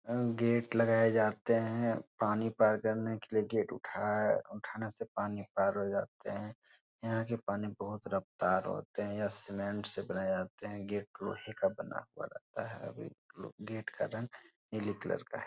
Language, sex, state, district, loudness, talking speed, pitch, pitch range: Hindi, male, Bihar, Jahanabad, -35 LUFS, 180 wpm, 110 Hz, 105-115 Hz